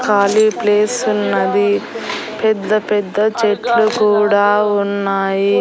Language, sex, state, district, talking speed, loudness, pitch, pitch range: Telugu, female, Andhra Pradesh, Annamaya, 75 wpm, -15 LUFS, 205 Hz, 200-215 Hz